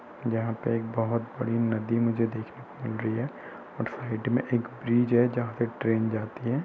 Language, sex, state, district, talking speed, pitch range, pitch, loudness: Hindi, male, Uttar Pradesh, Budaun, 205 wpm, 115-120 Hz, 115 Hz, -28 LUFS